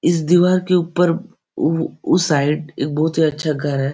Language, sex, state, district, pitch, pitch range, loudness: Hindi, male, Bihar, Supaul, 160 Hz, 150-175 Hz, -18 LUFS